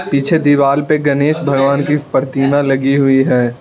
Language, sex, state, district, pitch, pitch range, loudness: Hindi, male, Arunachal Pradesh, Lower Dibang Valley, 140 Hz, 135-145 Hz, -13 LUFS